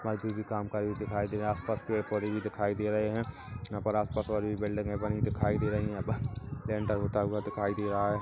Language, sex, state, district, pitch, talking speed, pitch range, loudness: Hindi, male, Chhattisgarh, Kabirdham, 105 Hz, 270 wpm, 105-110 Hz, -33 LUFS